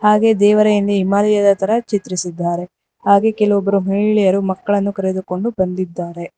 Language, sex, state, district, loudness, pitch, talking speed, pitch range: Kannada, female, Karnataka, Bangalore, -16 LUFS, 200 Hz, 115 wpm, 185-210 Hz